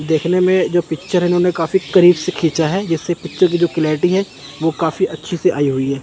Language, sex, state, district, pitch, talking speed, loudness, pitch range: Hindi, male, Chandigarh, Chandigarh, 175 Hz, 230 wpm, -16 LUFS, 160-180 Hz